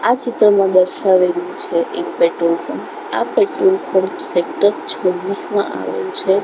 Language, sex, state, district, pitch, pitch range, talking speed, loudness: Gujarati, female, Gujarat, Gandhinagar, 190 Hz, 180-210 Hz, 130 wpm, -17 LUFS